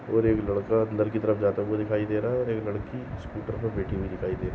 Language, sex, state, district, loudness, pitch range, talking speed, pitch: Hindi, male, Goa, North and South Goa, -28 LUFS, 100-110 Hz, 305 wpm, 105 Hz